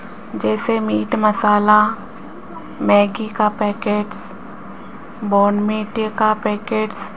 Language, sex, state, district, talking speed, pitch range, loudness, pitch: Hindi, female, Rajasthan, Jaipur, 85 wpm, 205-215 Hz, -18 LUFS, 210 Hz